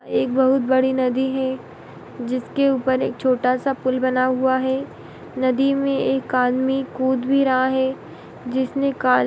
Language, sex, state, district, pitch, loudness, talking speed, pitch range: Hindi, female, Uttar Pradesh, Etah, 260 Hz, -20 LUFS, 170 wpm, 255-265 Hz